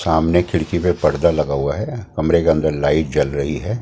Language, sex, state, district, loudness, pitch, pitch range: Hindi, male, Delhi, New Delhi, -18 LUFS, 80 Hz, 75-90 Hz